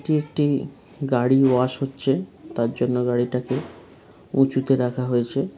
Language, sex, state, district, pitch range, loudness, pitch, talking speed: Bengali, male, West Bengal, Kolkata, 125-135 Hz, -22 LUFS, 130 Hz, 105 wpm